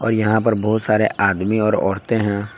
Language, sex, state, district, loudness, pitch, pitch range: Hindi, male, Jharkhand, Palamu, -18 LUFS, 105 Hz, 100-110 Hz